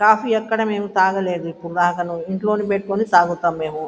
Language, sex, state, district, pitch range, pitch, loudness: Telugu, female, Andhra Pradesh, Guntur, 175-210 Hz, 190 Hz, -19 LUFS